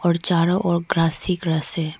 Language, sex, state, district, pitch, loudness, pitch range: Hindi, female, Arunachal Pradesh, Lower Dibang Valley, 170 Hz, -20 LUFS, 165-175 Hz